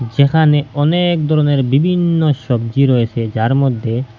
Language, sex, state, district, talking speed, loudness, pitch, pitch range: Bengali, male, Assam, Hailakandi, 115 wpm, -14 LUFS, 140 Hz, 120-155 Hz